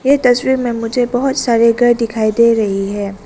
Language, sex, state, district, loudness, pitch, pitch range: Hindi, female, Arunachal Pradesh, Lower Dibang Valley, -14 LUFS, 235 Hz, 220-245 Hz